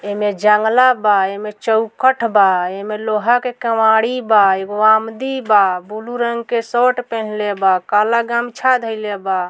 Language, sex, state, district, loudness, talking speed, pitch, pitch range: Bhojpuri, female, Bihar, Muzaffarpur, -16 LUFS, 160 wpm, 220 Hz, 205-235 Hz